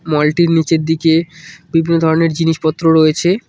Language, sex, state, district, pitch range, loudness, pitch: Bengali, male, West Bengal, Cooch Behar, 160-165 Hz, -14 LUFS, 165 Hz